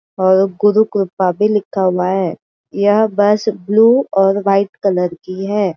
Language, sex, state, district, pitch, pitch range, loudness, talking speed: Hindi, female, Maharashtra, Aurangabad, 200 Hz, 190-210 Hz, -15 LUFS, 145 wpm